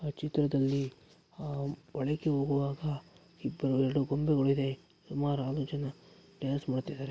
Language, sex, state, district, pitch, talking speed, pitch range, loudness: Kannada, male, Karnataka, Mysore, 140 Hz, 110 wpm, 135-155 Hz, -33 LUFS